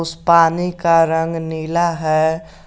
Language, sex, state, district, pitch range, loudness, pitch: Hindi, male, Jharkhand, Garhwa, 160-170 Hz, -16 LUFS, 165 Hz